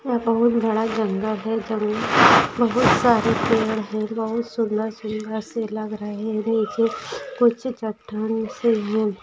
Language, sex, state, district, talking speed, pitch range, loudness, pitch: Hindi, female, Maharashtra, Pune, 145 wpm, 215-230 Hz, -21 LUFS, 220 Hz